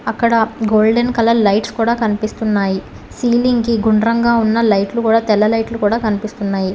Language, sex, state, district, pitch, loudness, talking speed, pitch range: Telugu, female, Telangana, Hyderabad, 225 Hz, -15 LUFS, 140 wpm, 210-230 Hz